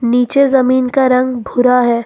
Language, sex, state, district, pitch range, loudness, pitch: Hindi, female, Jharkhand, Ranchi, 245-260 Hz, -12 LUFS, 250 Hz